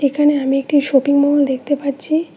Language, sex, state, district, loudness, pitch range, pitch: Bengali, female, West Bengal, Cooch Behar, -16 LUFS, 275-290 Hz, 285 Hz